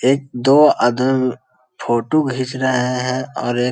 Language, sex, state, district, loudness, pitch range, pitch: Hindi, male, Bihar, Jahanabad, -17 LUFS, 125-130 Hz, 130 Hz